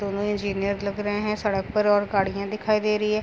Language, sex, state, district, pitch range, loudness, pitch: Hindi, female, Uttar Pradesh, Gorakhpur, 200-210 Hz, -24 LUFS, 205 Hz